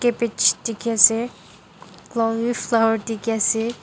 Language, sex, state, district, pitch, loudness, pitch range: Nagamese, female, Nagaland, Dimapur, 225 Hz, -19 LUFS, 225-235 Hz